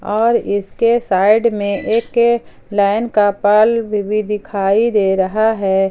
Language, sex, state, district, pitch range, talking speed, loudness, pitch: Hindi, female, Jharkhand, Palamu, 200-230 Hz, 130 wpm, -15 LUFS, 210 Hz